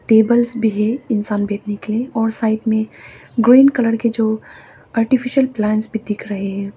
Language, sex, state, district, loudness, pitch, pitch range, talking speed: Hindi, female, Arunachal Pradesh, Papum Pare, -17 LUFS, 220 Hz, 210-235 Hz, 175 wpm